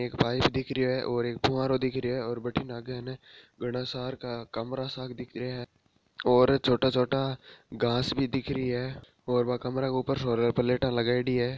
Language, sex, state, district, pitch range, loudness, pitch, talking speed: Marwari, male, Rajasthan, Nagaur, 120-130 Hz, -29 LUFS, 125 Hz, 200 wpm